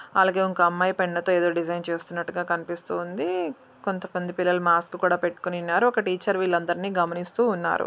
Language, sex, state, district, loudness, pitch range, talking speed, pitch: Telugu, female, Andhra Pradesh, Srikakulam, -25 LUFS, 170-185 Hz, 165 wpm, 175 Hz